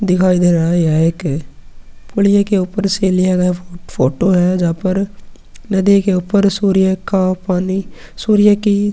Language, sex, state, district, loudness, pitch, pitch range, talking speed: Hindi, male, Uttar Pradesh, Muzaffarnagar, -15 LUFS, 185 Hz, 180-200 Hz, 160 wpm